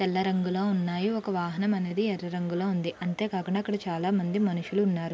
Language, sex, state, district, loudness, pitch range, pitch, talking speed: Telugu, female, Andhra Pradesh, Krishna, -29 LUFS, 175-200 Hz, 185 Hz, 165 wpm